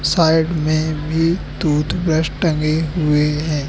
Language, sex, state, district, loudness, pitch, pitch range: Hindi, male, Madhya Pradesh, Katni, -18 LUFS, 155 Hz, 150-160 Hz